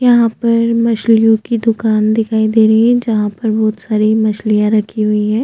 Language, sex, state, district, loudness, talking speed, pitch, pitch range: Hindi, female, Chhattisgarh, Jashpur, -13 LUFS, 190 wpm, 220 Hz, 215-230 Hz